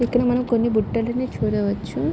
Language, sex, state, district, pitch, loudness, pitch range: Telugu, female, Andhra Pradesh, Srikakulam, 235 Hz, -22 LUFS, 180-245 Hz